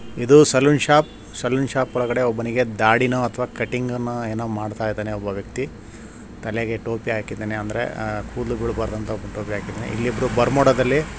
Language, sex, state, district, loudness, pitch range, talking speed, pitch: Kannada, male, Karnataka, Shimoga, -21 LUFS, 110-125 Hz, 160 wpm, 115 Hz